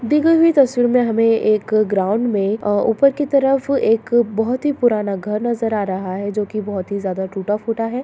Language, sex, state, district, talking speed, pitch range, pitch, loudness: Hindi, female, Bihar, Lakhisarai, 215 wpm, 205-250 Hz, 225 Hz, -18 LUFS